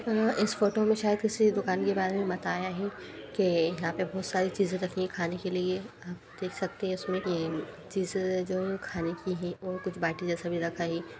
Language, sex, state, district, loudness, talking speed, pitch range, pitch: Hindi, female, Uttar Pradesh, Etah, -31 LUFS, 225 wpm, 175-195 Hz, 185 Hz